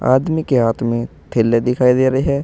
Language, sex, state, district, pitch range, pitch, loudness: Hindi, male, Uttar Pradesh, Saharanpur, 120-135 Hz, 125 Hz, -16 LUFS